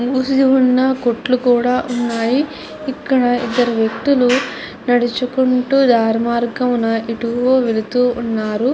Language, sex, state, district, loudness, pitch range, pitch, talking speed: Telugu, female, Andhra Pradesh, Chittoor, -16 LUFS, 235-260 Hz, 245 Hz, 95 wpm